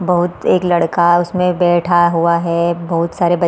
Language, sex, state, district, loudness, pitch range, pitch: Hindi, female, Chhattisgarh, Balrampur, -14 LUFS, 170-175 Hz, 175 Hz